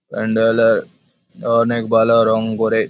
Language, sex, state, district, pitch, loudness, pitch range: Bengali, male, West Bengal, Malda, 115 Hz, -16 LUFS, 110-115 Hz